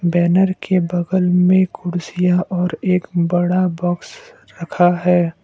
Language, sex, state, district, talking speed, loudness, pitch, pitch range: Hindi, male, Assam, Kamrup Metropolitan, 120 wpm, -17 LUFS, 180 Hz, 175-185 Hz